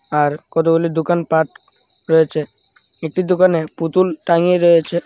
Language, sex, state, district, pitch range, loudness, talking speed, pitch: Bengali, male, Tripura, West Tripura, 160-175 Hz, -16 LUFS, 105 wpm, 165 Hz